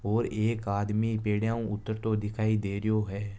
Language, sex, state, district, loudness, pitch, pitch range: Marwari, male, Rajasthan, Nagaur, -30 LUFS, 110 Hz, 105-110 Hz